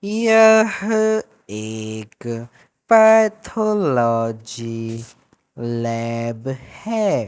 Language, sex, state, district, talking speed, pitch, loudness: Hindi, male, Madhya Pradesh, Katni, 40 wpm, 120 Hz, -18 LUFS